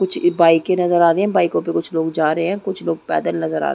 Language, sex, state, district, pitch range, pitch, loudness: Hindi, female, Chhattisgarh, Raigarh, 165-185 Hz, 170 Hz, -18 LUFS